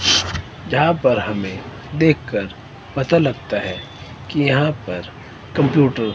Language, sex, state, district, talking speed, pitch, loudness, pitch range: Hindi, male, Himachal Pradesh, Shimla, 115 wpm, 125 Hz, -19 LUFS, 100-140 Hz